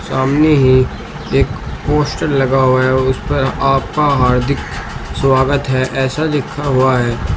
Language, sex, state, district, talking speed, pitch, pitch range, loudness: Hindi, male, Uttar Pradesh, Shamli, 140 wpm, 135 Hz, 130-145 Hz, -14 LUFS